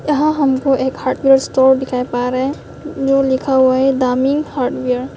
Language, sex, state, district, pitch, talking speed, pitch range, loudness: Hindi, female, Arunachal Pradesh, Papum Pare, 265 Hz, 175 wpm, 255-275 Hz, -15 LUFS